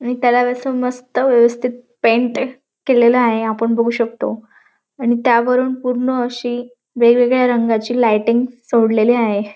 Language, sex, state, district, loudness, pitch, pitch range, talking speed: Marathi, female, Maharashtra, Dhule, -16 LUFS, 245 Hz, 235-250 Hz, 130 wpm